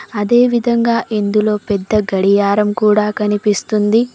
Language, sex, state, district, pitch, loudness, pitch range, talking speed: Telugu, female, Telangana, Mahabubabad, 210 Hz, -14 LUFS, 205-225 Hz, 85 wpm